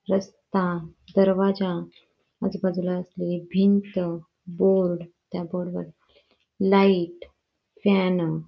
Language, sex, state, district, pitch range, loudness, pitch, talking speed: Marathi, female, Karnataka, Belgaum, 175-195 Hz, -24 LUFS, 185 Hz, 85 wpm